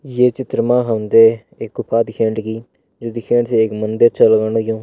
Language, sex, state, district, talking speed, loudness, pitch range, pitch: Hindi, male, Uttarakhand, Uttarkashi, 210 wpm, -15 LUFS, 110-120 Hz, 115 Hz